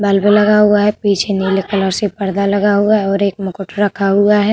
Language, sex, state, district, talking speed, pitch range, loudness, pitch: Hindi, female, Uttar Pradesh, Budaun, 240 wpm, 195-205 Hz, -14 LUFS, 200 Hz